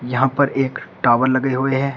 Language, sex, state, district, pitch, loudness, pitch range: Hindi, male, Uttar Pradesh, Shamli, 130 Hz, -18 LUFS, 130-135 Hz